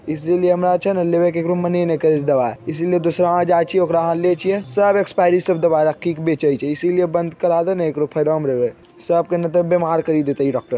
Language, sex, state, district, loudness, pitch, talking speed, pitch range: Magahi, male, Bihar, Jamui, -18 LUFS, 170 Hz, 275 wpm, 155-180 Hz